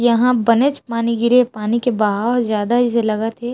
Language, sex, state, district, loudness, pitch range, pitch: Chhattisgarhi, female, Chhattisgarh, Raigarh, -17 LUFS, 225-245 Hz, 235 Hz